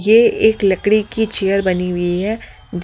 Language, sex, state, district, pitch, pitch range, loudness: Hindi, female, Delhi, New Delhi, 200 Hz, 180-220 Hz, -16 LUFS